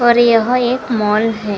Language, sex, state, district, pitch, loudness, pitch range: Hindi, female, Karnataka, Bangalore, 230 Hz, -14 LUFS, 215-240 Hz